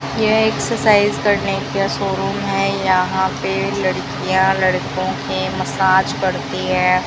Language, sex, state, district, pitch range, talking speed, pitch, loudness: Hindi, female, Rajasthan, Bikaner, 135-195 Hz, 120 wpm, 190 Hz, -17 LUFS